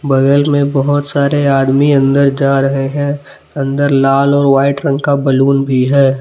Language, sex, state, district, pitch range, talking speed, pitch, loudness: Hindi, male, Jharkhand, Palamu, 135-140 Hz, 175 wpm, 140 Hz, -12 LUFS